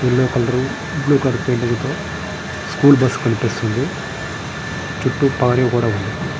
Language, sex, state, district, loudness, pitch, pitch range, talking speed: Telugu, male, Andhra Pradesh, Srikakulam, -18 LUFS, 130 Hz, 125-140 Hz, 120 wpm